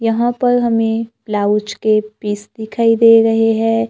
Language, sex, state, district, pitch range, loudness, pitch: Hindi, male, Maharashtra, Gondia, 215-230 Hz, -15 LUFS, 225 Hz